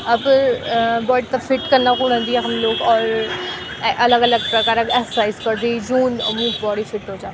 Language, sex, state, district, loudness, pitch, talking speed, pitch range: Garhwali, female, Uttarakhand, Tehri Garhwal, -17 LUFS, 235 Hz, 195 wpm, 225-245 Hz